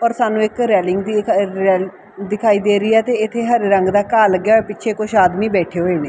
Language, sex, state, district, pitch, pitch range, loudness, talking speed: Punjabi, female, Punjab, Fazilka, 210 Hz, 190-220 Hz, -16 LUFS, 215 wpm